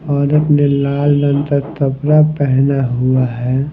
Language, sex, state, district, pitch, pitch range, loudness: Hindi, male, Himachal Pradesh, Shimla, 140 Hz, 135-145 Hz, -14 LUFS